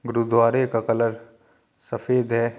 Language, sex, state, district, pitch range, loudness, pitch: Hindi, male, Uttar Pradesh, Jyotiba Phule Nagar, 115-120 Hz, -22 LUFS, 115 Hz